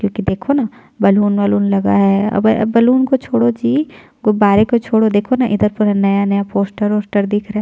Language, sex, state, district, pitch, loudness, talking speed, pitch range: Hindi, female, Chhattisgarh, Jashpur, 210 Hz, -15 LUFS, 195 wpm, 200-230 Hz